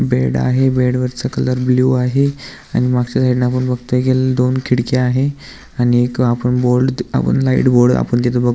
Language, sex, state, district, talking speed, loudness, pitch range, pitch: Marathi, male, Maharashtra, Aurangabad, 170 wpm, -15 LUFS, 120-130 Hz, 125 Hz